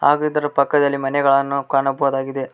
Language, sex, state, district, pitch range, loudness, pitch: Kannada, male, Karnataka, Koppal, 135-145 Hz, -18 LUFS, 140 Hz